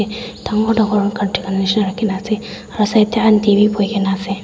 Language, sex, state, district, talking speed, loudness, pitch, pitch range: Nagamese, female, Nagaland, Dimapur, 150 wpm, -16 LUFS, 210 Hz, 195-215 Hz